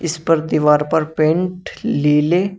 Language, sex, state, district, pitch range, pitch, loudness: Hindi, male, Uttar Pradesh, Shamli, 150-170 Hz, 160 Hz, -17 LUFS